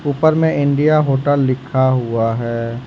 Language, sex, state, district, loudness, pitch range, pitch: Hindi, male, Jharkhand, Ranchi, -16 LUFS, 120-145 Hz, 135 Hz